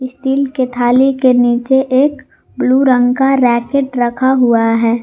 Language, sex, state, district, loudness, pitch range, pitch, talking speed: Hindi, female, Jharkhand, Garhwa, -12 LUFS, 245-265 Hz, 255 Hz, 155 wpm